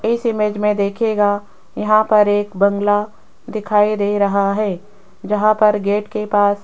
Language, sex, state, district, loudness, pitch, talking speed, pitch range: Hindi, female, Rajasthan, Jaipur, -17 LUFS, 210 Hz, 165 wpm, 205-215 Hz